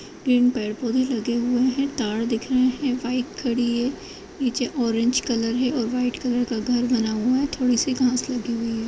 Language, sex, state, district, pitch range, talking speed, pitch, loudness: Hindi, female, Uttar Pradesh, Jyotiba Phule Nagar, 235-255 Hz, 195 wpm, 245 Hz, -23 LUFS